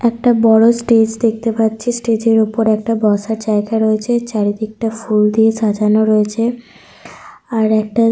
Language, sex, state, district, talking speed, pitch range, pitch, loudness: Bengali, female, Jharkhand, Sahebganj, 90 wpm, 215-230 Hz, 225 Hz, -15 LUFS